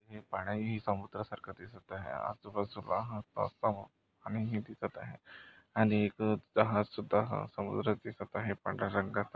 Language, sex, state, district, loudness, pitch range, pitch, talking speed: Marathi, male, Maharashtra, Nagpur, -36 LUFS, 100-110 Hz, 105 Hz, 140 wpm